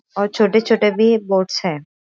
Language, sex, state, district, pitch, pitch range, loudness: Hindi, female, Maharashtra, Aurangabad, 210 Hz, 190-220 Hz, -17 LUFS